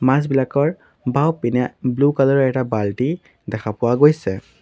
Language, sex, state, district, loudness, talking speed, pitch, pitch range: Assamese, male, Assam, Sonitpur, -19 LUFS, 130 wpm, 130 Hz, 120-140 Hz